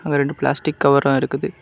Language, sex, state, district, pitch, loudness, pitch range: Tamil, male, Tamil Nadu, Kanyakumari, 140 Hz, -18 LUFS, 140-155 Hz